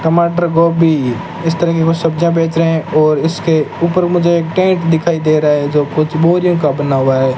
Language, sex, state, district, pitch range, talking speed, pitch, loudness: Hindi, male, Rajasthan, Bikaner, 155-170 Hz, 220 wpm, 165 Hz, -13 LUFS